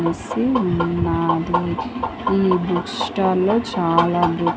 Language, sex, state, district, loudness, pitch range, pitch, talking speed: Telugu, female, Andhra Pradesh, Manyam, -20 LUFS, 175-200 Hz, 180 Hz, 105 wpm